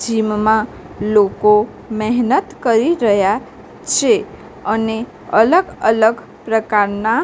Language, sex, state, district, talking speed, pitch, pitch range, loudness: Gujarati, female, Gujarat, Gandhinagar, 90 wpm, 220 Hz, 210-235 Hz, -16 LUFS